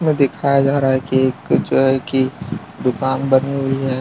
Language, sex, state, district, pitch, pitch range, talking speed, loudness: Hindi, male, Gujarat, Valsad, 135 Hz, 130-135 Hz, 180 wpm, -17 LUFS